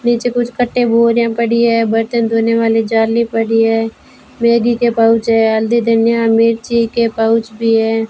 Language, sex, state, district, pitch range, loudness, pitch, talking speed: Hindi, female, Rajasthan, Bikaner, 225-235 Hz, -13 LUFS, 230 Hz, 170 wpm